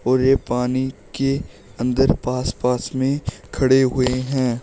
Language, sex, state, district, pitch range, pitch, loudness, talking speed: Hindi, male, Uttar Pradesh, Shamli, 125-130 Hz, 130 Hz, -20 LUFS, 140 wpm